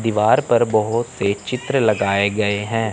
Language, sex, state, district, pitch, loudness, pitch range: Hindi, male, Chandigarh, Chandigarh, 110 Hz, -18 LUFS, 100-120 Hz